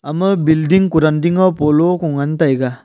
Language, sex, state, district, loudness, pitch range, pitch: Wancho, male, Arunachal Pradesh, Longding, -14 LUFS, 150-180 Hz, 160 Hz